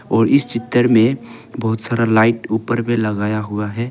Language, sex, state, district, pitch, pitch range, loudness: Hindi, male, Arunachal Pradesh, Longding, 115 Hz, 110-120 Hz, -17 LUFS